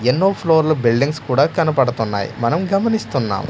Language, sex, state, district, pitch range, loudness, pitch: Telugu, male, Andhra Pradesh, Manyam, 120-165 Hz, -17 LUFS, 145 Hz